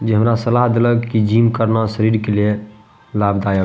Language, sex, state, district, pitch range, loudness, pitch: Maithili, male, Bihar, Madhepura, 105-115 Hz, -16 LUFS, 110 Hz